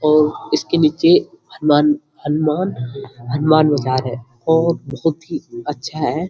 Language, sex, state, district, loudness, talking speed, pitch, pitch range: Hindi, male, Uttarakhand, Uttarkashi, -18 LUFS, 125 wpm, 150 Hz, 140-165 Hz